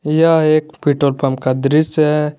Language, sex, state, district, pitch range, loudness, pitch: Hindi, male, Jharkhand, Garhwa, 140-155 Hz, -15 LUFS, 150 Hz